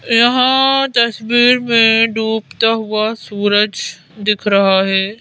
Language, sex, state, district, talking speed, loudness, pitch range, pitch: Hindi, female, Madhya Pradesh, Bhopal, 105 wpm, -13 LUFS, 205-235 Hz, 220 Hz